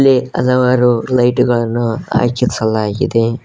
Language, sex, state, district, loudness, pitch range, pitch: Kannada, male, Karnataka, Koppal, -14 LUFS, 115-125 Hz, 120 Hz